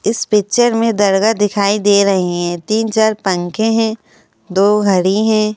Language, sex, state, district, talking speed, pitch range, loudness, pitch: Hindi, female, Madhya Pradesh, Bhopal, 160 wpm, 195-220 Hz, -14 LUFS, 210 Hz